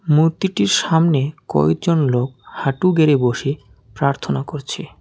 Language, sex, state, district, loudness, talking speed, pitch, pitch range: Bengali, male, West Bengal, Alipurduar, -18 LUFS, 110 wpm, 140 Hz, 125-160 Hz